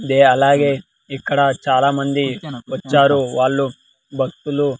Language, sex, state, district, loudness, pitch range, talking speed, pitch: Telugu, male, Andhra Pradesh, Sri Satya Sai, -17 LUFS, 135-140 Hz, 75 wpm, 140 Hz